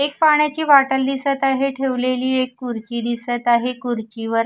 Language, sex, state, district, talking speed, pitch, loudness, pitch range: Marathi, female, Maharashtra, Gondia, 150 wpm, 255 Hz, -19 LUFS, 240-275 Hz